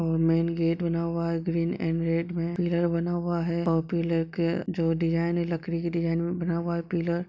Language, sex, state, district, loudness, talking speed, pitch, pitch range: Hindi, male, Jharkhand, Sahebganj, -27 LUFS, 215 wpm, 170 Hz, 165-170 Hz